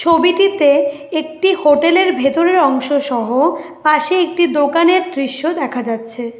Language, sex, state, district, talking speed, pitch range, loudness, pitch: Bengali, female, West Bengal, Alipurduar, 105 wpm, 275-340 Hz, -14 LUFS, 305 Hz